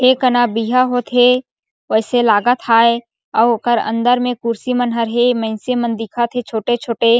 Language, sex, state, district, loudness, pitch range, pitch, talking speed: Chhattisgarhi, female, Chhattisgarh, Sarguja, -16 LUFS, 230-245 Hz, 240 Hz, 165 wpm